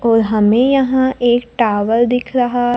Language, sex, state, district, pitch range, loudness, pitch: Hindi, female, Maharashtra, Gondia, 230-250 Hz, -14 LUFS, 240 Hz